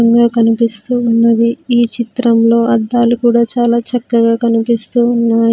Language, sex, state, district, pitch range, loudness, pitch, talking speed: Telugu, female, Andhra Pradesh, Sri Satya Sai, 230-240 Hz, -12 LUFS, 235 Hz, 120 wpm